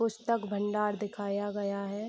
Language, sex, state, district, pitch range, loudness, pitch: Hindi, female, Bihar, Saharsa, 205-215 Hz, -33 LUFS, 205 Hz